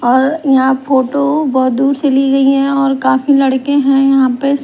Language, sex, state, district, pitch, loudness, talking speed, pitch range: Hindi, female, Bihar, Patna, 275 Hz, -12 LUFS, 195 wpm, 265-280 Hz